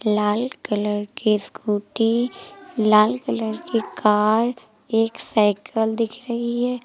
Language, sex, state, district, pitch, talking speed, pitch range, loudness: Hindi, female, Uttar Pradesh, Lucknow, 225 Hz, 115 wpm, 210-240 Hz, -21 LUFS